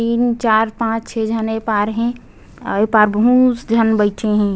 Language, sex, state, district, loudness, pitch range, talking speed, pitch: Chhattisgarhi, female, Chhattisgarh, Bastar, -16 LUFS, 215-230 Hz, 200 wpm, 225 Hz